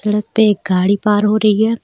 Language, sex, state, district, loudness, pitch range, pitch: Hindi, female, Jharkhand, Deoghar, -14 LUFS, 205-215 Hz, 210 Hz